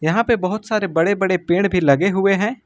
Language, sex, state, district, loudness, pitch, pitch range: Hindi, male, Uttar Pradesh, Lucknow, -18 LUFS, 195 Hz, 180-210 Hz